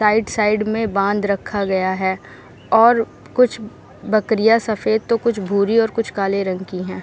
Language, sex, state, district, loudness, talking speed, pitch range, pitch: Hindi, female, Bihar, Jahanabad, -18 LUFS, 170 wpm, 195-225 Hz, 210 Hz